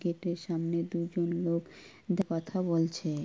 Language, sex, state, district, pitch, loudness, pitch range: Bengali, female, West Bengal, Kolkata, 170 Hz, -32 LUFS, 165-175 Hz